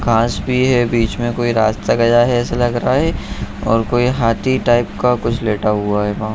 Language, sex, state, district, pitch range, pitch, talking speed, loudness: Hindi, male, Bihar, Jahanabad, 110-120 Hz, 120 Hz, 215 wpm, -16 LUFS